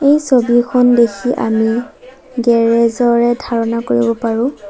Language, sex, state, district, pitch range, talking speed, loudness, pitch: Assamese, female, Assam, Sonitpur, 230-250 Hz, 115 wpm, -14 LUFS, 235 Hz